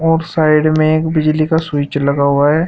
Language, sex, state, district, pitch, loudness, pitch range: Hindi, male, Uttar Pradesh, Shamli, 155 Hz, -14 LUFS, 145-160 Hz